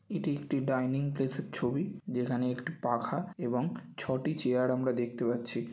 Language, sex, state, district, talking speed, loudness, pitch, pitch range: Bengali, male, West Bengal, North 24 Parganas, 145 wpm, -33 LUFS, 130 Hz, 125-140 Hz